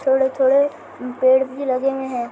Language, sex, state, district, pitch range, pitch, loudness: Hindi, female, Maharashtra, Chandrapur, 255-270 Hz, 265 Hz, -18 LUFS